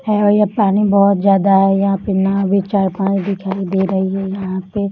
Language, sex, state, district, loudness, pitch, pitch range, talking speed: Hindi, female, Bihar, Bhagalpur, -15 LUFS, 195 Hz, 195-200 Hz, 220 wpm